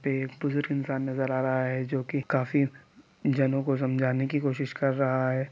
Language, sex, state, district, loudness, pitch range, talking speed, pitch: Hindi, male, Bihar, East Champaran, -28 LUFS, 130-140 Hz, 185 wpm, 135 Hz